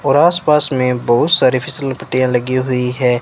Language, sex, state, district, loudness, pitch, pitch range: Hindi, male, Rajasthan, Bikaner, -14 LUFS, 130 Hz, 125-140 Hz